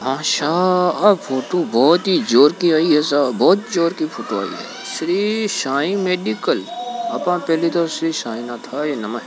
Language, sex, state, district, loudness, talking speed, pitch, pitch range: Hindi, male, Rajasthan, Nagaur, -18 LUFS, 135 wpm, 170 Hz, 150-190 Hz